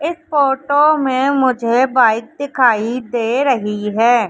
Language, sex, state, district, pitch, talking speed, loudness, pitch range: Hindi, female, Madhya Pradesh, Katni, 255 Hz, 125 wpm, -15 LUFS, 235-280 Hz